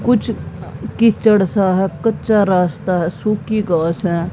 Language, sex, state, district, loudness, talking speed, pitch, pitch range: Hindi, female, Haryana, Jhajjar, -16 LUFS, 140 wpm, 195 Hz, 175-220 Hz